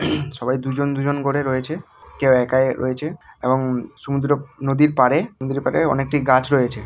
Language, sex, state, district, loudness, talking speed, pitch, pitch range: Bengali, male, West Bengal, Malda, -20 LUFS, 150 wpm, 135 Hz, 130-145 Hz